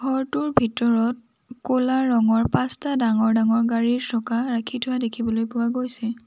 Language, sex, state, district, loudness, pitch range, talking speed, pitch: Assamese, female, Assam, Sonitpur, -22 LUFS, 230-255 Hz, 135 wpm, 235 Hz